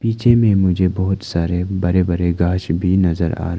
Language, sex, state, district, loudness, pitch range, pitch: Hindi, male, Arunachal Pradesh, Lower Dibang Valley, -17 LUFS, 85-95 Hz, 90 Hz